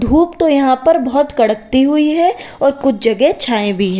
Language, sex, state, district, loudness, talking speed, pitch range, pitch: Hindi, female, Uttar Pradesh, Lalitpur, -13 LUFS, 210 wpm, 230-300 Hz, 275 Hz